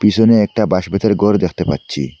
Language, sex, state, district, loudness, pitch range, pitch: Bengali, male, Assam, Hailakandi, -15 LUFS, 90-105 Hz, 100 Hz